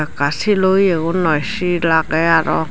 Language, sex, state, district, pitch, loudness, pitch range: Chakma, female, Tripura, Dhalai, 165 Hz, -16 LUFS, 160-185 Hz